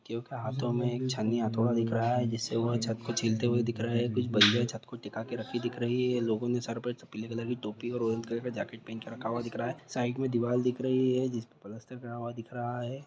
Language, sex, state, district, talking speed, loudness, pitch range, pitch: Hindi, male, Bihar, Jahanabad, 280 wpm, -31 LUFS, 115-125 Hz, 120 Hz